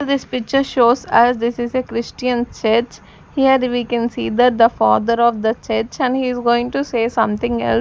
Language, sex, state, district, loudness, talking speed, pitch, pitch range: English, female, Punjab, Fazilka, -17 LUFS, 215 wpm, 240 Hz, 230-250 Hz